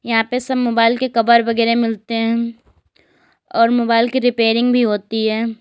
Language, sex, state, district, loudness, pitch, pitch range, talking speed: Hindi, female, Uttar Pradesh, Lalitpur, -16 LUFS, 230 Hz, 225-240 Hz, 170 wpm